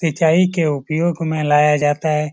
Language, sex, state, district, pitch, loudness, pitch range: Hindi, male, Bihar, Lakhisarai, 155 Hz, -17 LUFS, 150-165 Hz